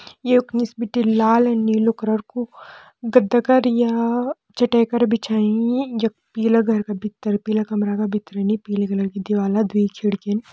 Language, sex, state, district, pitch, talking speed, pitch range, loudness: Kumaoni, female, Uttarakhand, Tehri Garhwal, 220 Hz, 160 wpm, 210-235 Hz, -20 LUFS